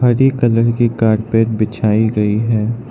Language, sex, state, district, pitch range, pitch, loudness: Hindi, male, Arunachal Pradesh, Lower Dibang Valley, 110-120 Hz, 115 Hz, -15 LUFS